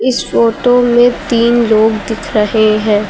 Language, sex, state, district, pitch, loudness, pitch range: Hindi, female, Uttar Pradesh, Lucknow, 230 Hz, -11 LUFS, 215-245 Hz